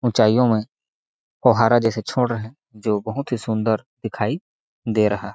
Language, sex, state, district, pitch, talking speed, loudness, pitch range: Hindi, male, Chhattisgarh, Sarguja, 110 Hz, 170 wpm, -21 LUFS, 110-120 Hz